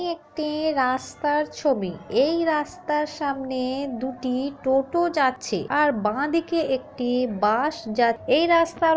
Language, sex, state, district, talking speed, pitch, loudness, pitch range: Bengali, female, West Bengal, Malda, 120 wpm, 280 Hz, -24 LUFS, 255-315 Hz